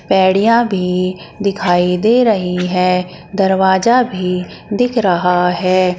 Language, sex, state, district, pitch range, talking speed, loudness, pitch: Hindi, female, Uttar Pradesh, Shamli, 180-200 Hz, 110 wpm, -14 LUFS, 185 Hz